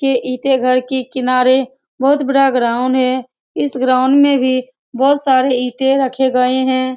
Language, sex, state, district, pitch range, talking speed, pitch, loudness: Hindi, female, Bihar, Saran, 255-270 Hz, 170 wpm, 260 Hz, -14 LUFS